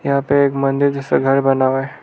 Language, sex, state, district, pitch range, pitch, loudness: Hindi, male, Arunachal Pradesh, Lower Dibang Valley, 135-140 Hz, 135 Hz, -16 LUFS